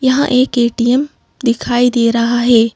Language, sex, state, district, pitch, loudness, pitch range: Hindi, female, Madhya Pradesh, Bhopal, 240 Hz, -13 LUFS, 235-255 Hz